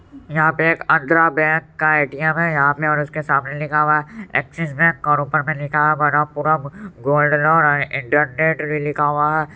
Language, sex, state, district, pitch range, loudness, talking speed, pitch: Hindi, male, Bihar, Supaul, 150-160 Hz, -17 LUFS, 195 wpm, 150 Hz